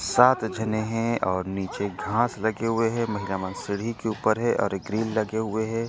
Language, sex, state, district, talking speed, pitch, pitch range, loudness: Chhattisgarhi, male, Chhattisgarh, Korba, 205 wpm, 110 Hz, 100-115 Hz, -26 LUFS